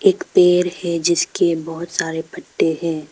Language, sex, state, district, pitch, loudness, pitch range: Hindi, female, Arunachal Pradesh, Papum Pare, 170 Hz, -18 LUFS, 165-180 Hz